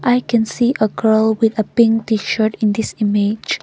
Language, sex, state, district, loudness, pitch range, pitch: English, female, Nagaland, Kohima, -16 LUFS, 215-230 Hz, 220 Hz